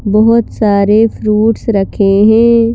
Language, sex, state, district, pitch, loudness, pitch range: Hindi, female, Madhya Pradesh, Bhopal, 215 Hz, -10 LUFS, 205-225 Hz